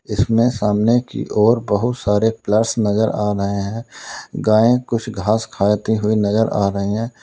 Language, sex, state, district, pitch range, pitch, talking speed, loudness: Hindi, male, Uttar Pradesh, Lalitpur, 105-115 Hz, 110 Hz, 165 wpm, -18 LUFS